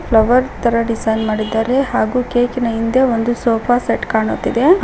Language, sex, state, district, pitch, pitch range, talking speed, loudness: Kannada, female, Karnataka, Koppal, 235 Hz, 225-250 Hz, 160 wpm, -16 LUFS